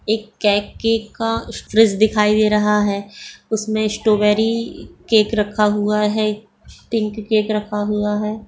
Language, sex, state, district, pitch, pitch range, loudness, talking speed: Hindi, female, Bihar, Begusarai, 215 Hz, 210-220 Hz, -18 LUFS, 150 wpm